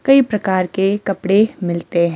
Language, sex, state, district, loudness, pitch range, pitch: Hindi, female, Himachal Pradesh, Shimla, -17 LUFS, 180-210 Hz, 195 Hz